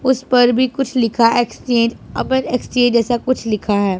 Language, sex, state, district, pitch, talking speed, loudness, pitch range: Hindi, female, Punjab, Pathankot, 240 Hz, 180 wpm, -16 LUFS, 230-255 Hz